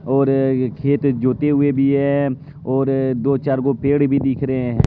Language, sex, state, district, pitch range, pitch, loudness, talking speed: Hindi, male, Jharkhand, Deoghar, 130-140 Hz, 135 Hz, -18 LUFS, 195 wpm